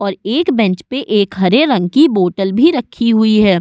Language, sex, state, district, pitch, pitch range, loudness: Hindi, female, Uttar Pradesh, Budaun, 215 Hz, 195-255 Hz, -13 LUFS